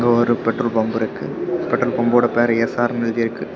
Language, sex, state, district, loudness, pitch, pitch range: Tamil, male, Tamil Nadu, Kanyakumari, -19 LUFS, 120 Hz, 115-120 Hz